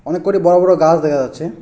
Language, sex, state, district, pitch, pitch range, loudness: Bengali, male, West Bengal, Alipurduar, 170 Hz, 155-180 Hz, -13 LUFS